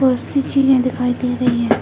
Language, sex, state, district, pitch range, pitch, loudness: Hindi, female, Bihar, Jamui, 245-265 Hz, 250 Hz, -17 LUFS